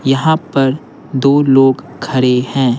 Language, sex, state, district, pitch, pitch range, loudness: Hindi, male, Bihar, Patna, 135 Hz, 130-140 Hz, -13 LUFS